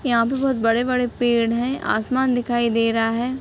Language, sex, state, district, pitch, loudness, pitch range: Hindi, female, Uttar Pradesh, Ghazipur, 240 Hz, -20 LUFS, 230-255 Hz